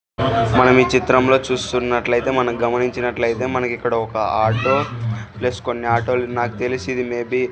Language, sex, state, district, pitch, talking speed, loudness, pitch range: Telugu, male, Andhra Pradesh, Sri Satya Sai, 125 Hz, 170 wpm, -19 LUFS, 120-125 Hz